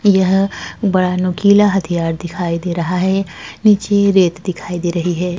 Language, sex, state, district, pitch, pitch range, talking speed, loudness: Hindi, female, Uttar Pradesh, Jalaun, 185 Hz, 175-195 Hz, 155 wpm, -15 LUFS